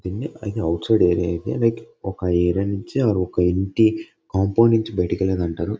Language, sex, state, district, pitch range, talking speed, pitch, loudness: Telugu, male, Karnataka, Bellary, 90-110 Hz, 195 wpm, 95 Hz, -21 LUFS